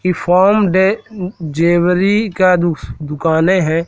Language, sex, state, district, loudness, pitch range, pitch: Hindi, male, Madhya Pradesh, Katni, -14 LUFS, 165-190 Hz, 180 Hz